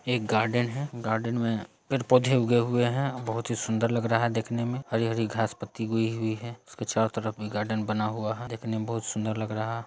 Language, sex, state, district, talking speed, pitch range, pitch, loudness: Hindi, male, Bihar, Saran, 230 wpm, 110-120 Hz, 115 Hz, -28 LUFS